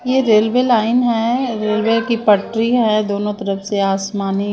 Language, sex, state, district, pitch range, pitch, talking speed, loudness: Hindi, female, Maharashtra, Mumbai Suburban, 205-235 Hz, 215 Hz, 160 wpm, -16 LUFS